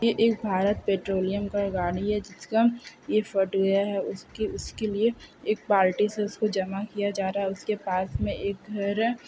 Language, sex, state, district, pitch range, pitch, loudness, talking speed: Hindi, female, Chhattisgarh, Bilaspur, 195-215 Hz, 205 Hz, -27 LUFS, 195 wpm